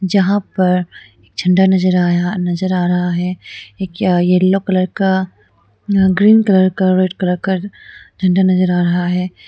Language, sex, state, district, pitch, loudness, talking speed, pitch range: Hindi, female, Arunachal Pradesh, Lower Dibang Valley, 185 Hz, -14 LUFS, 165 wpm, 180-190 Hz